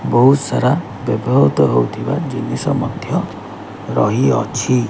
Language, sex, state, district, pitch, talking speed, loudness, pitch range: Odia, male, Odisha, Khordha, 120 Hz, 85 wpm, -16 LUFS, 80-130 Hz